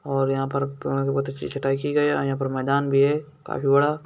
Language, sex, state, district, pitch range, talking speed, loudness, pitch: Hindi, male, Bihar, Gaya, 135-145 Hz, 265 wpm, -23 LUFS, 140 Hz